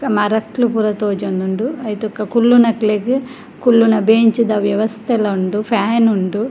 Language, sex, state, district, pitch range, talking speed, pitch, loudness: Tulu, female, Karnataka, Dakshina Kannada, 210-235 Hz, 120 wpm, 220 Hz, -15 LUFS